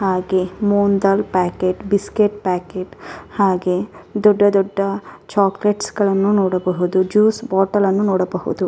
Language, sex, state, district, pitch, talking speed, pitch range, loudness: Kannada, female, Karnataka, Dharwad, 195 Hz, 105 wpm, 185-205 Hz, -18 LUFS